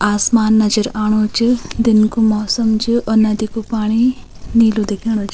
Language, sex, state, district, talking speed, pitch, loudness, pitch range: Garhwali, female, Uttarakhand, Tehri Garhwal, 170 wpm, 220 Hz, -15 LUFS, 215-230 Hz